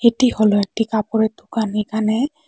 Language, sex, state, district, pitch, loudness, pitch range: Bengali, female, Tripura, West Tripura, 220 Hz, -19 LUFS, 215-235 Hz